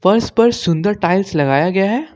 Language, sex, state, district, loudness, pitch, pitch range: Hindi, male, Jharkhand, Ranchi, -15 LUFS, 195 Hz, 175-220 Hz